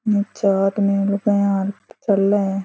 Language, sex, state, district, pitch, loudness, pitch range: Rajasthani, female, Rajasthan, Churu, 200 Hz, -19 LUFS, 195-205 Hz